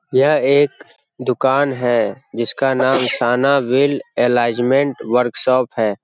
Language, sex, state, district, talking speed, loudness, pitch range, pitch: Hindi, male, Bihar, Jamui, 110 wpm, -17 LUFS, 120-140 Hz, 130 Hz